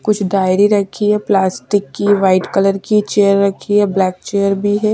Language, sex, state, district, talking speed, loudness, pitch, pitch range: Hindi, female, Bihar, West Champaran, 205 wpm, -14 LUFS, 200 Hz, 195-205 Hz